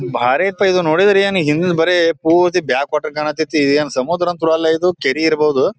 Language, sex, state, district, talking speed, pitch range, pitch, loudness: Kannada, male, Karnataka, Bijapur, 155 wpm, 150-180 Hz, 160 Hz, -15 LUFS